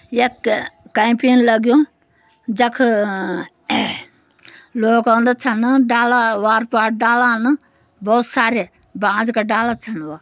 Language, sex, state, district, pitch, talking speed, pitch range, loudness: Garhwali, female, Uttarakhand, Uttarkashi, 235 Hz, 115 wpm, 220-245 Hz, -16 LUFS